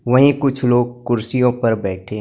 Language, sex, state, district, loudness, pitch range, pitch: Hindi, male, Maharashtra, Gondia, -17 LUFS, 110-125 Hz, 120 Hz